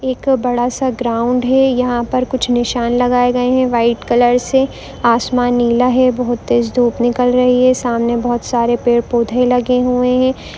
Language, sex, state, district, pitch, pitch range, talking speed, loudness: Hindi, female, Chhattisgarh, Bilaspur, 245 Hz, 240-250 Hz, 175 wpm, -14 LUFS